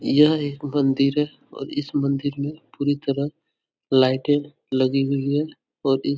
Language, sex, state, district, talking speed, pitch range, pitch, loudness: Hindi, male, Uttar Pradesh, Etah, 135 wpm, 140-145 Hz, 140 Hz, -23 LUFS